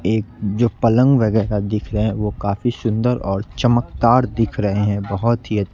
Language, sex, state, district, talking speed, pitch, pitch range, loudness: Hindi, male, Bihar, West Champaran, 180 wpm, 110 Hz, 100-120 Hz, -18 LUFS